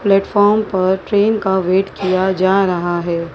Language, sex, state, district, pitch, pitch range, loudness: Hindi, female, Maharashtra, Mumbai Suburban, 190 Hz, 185-200 Hz, -15 LUFS